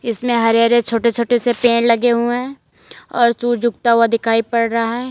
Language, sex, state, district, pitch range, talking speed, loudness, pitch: Hindi, female, Uttar Pradesh, Lalitpur, 230-240 Hz, 210 wpm, -16 LUFS, 235 Hz